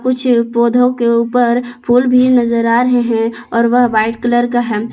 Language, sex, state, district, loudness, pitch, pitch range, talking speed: Hindi, female, Jharkhand, Palamu, -13 LUFS, 240 Hz, 235-245 Hz, 205 wpm